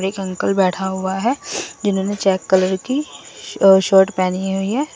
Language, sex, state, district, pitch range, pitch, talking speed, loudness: Hindi, female, Assam, Sonitpur, 190-200 Hz, 190 Hz, 155 wpm, -18 LUFS